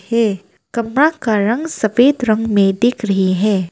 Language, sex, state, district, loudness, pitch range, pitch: Hindi, female, Arunachal Pradesh, Papum Pare, -16 LUFS, 200-240 Hz, 220 Hz